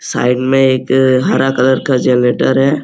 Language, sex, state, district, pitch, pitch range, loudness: Hindi, male, Uttar Pradesh, Muzaffarnagar, 130 Hz, 125-135 Hz, -12 LUFS